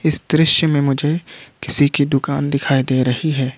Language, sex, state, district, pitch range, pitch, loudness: Hindi, male, Jharkhand, Ranchi, 135-155 Hz, 140 Hz, -16 LUFS